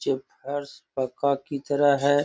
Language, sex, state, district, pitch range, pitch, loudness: Hindi, male, Bihar, Gaya, 140-145 Hz, 140 Hz, -26 LUFS